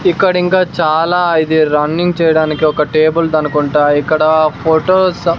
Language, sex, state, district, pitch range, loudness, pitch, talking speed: Telugu, male, Andhra Pradesh, Sri Satya Sai, 155-175 Hz, -12 LUFS, 160 Hz, 135 wpm